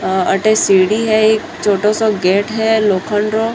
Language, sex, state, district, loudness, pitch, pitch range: Marwari, female, Rajasthan, Churu, -14 LUFS, 215 Hz, 195-220 Hz